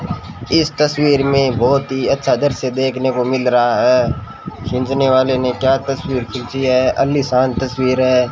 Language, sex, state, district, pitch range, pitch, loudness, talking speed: Hindi, male, Rajasthan, Bikaner, 125-135 Hz, 130 Hz, -16 LUFS, 160 wpm